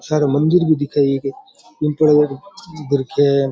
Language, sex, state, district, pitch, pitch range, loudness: Rajasthani, male, Rajasthan, Churu, 145 Hz, 140-155 Hz, -17 LUFS